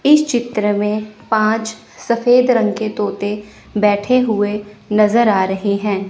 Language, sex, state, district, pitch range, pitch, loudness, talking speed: Hindi, female, Chandigarh, Chandigarh, 205-235 Hz, 210 Hz, -16 LUFS, 140 wpm